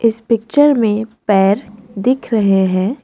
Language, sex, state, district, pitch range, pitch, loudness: Hindi, female, Assam, Kamrup Metropolitan, 200-235 Hz, 220 Hz, -15 LUFS